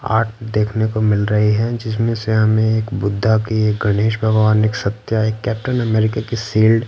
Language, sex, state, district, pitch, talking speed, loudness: Hindi, male, Bihar, Patna, 110 Hz, 200 wpm, -17 LUFS